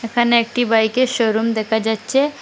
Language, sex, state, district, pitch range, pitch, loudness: Bengali, female, Assam, Hailakandi, 220-245 Hz, 230 Hz, -17 LUFS